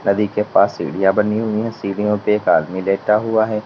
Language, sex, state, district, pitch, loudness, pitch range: Hindi, male, Uttar Pradesh, Lalitpur, 105 Hz, -18 LUFS, 100-110 Hz